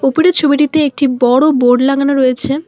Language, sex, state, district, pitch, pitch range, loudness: Bengali, female, West Bengal, Alipurduar, 275 Hz, 260-295 Hz, -11 LUFS